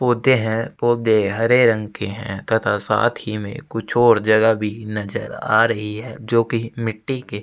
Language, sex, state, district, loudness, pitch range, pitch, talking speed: Hindi, male, Chhattisgarh, Sukma, -19 LUFS, 105-120 Hz, 110 Hz, 185 wpm